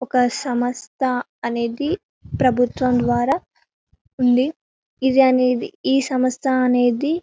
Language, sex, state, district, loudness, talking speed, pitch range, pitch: Telugu, female, Telangana, Karimnagar, -20 LUFS, 75 wpm, 245-265 Hz, 255 Hz